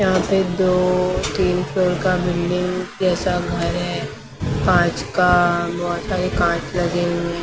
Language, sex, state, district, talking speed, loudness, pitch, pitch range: Hindi, female, Maharashtra, Mumbai Suburban, 145 wpm, -19 LUFS, 180 Hz, 175-185 Hz